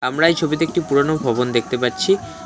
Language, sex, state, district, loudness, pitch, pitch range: Bengali, male, West Bengal, Alipurduar, -18 LUFS, 150 Hz, 125-165 Hz